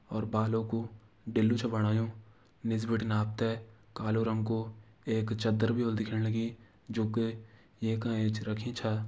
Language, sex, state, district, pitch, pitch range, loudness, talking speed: Garhwali, male, Uttarakhand, Uttarkashi, 110 Hz, 110-115 Hz, -32 LUFS, 165 wpm